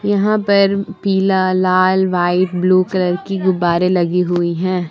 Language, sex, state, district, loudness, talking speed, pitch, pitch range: Hindi, female, Jharkhand, Palamu, -15 LUFS, 145 wpm, 185 Hz, 180-195 Hz